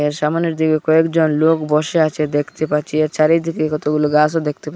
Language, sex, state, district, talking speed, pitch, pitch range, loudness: Bengali, male, Assam, Hailakandi, 190 wpm, 155 Hz, 150-160 Hz, -17 LUFS